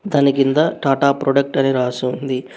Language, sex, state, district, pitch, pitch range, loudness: Telugu, male, Telangana, Hyderabad, 135 Hz, 130-140 Hz, -17 LUFS